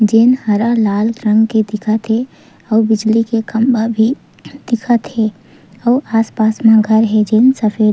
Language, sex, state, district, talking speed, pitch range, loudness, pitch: Chhattisgarhi, female, Chhattisgarh, Sukma, 160 wpm, 215-230 Hz, -13 LUFS, 220 Hz